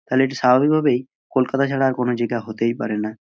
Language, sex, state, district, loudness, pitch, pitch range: Bengali, male, West Bengal, Purulia, -20 LUFS, 125 Hz, 115-135 Hz